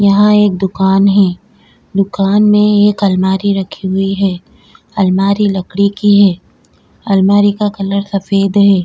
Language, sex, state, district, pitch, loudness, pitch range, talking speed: Hindi, female, Goa, North and South Goa, 200 Hz, -12 LUFS, 195-205 Hz, 135 wpm